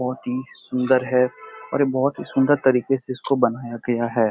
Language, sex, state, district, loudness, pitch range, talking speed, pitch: Hindi, male, Uttar Pradesh, Etah, -21 LUFS, 125-135 Hz, 210 wpm, 130 Hz